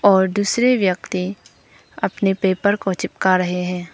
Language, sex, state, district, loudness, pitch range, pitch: Hindi, female, Arunachal Pradesh, Papum Pare, -19 LUFS, 185-200 Hz, 190 Hz